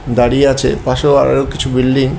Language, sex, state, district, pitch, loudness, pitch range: Bengali, male, Tripura, West Tripura, 130 Hz, -13 LUFS, 130-135 Hz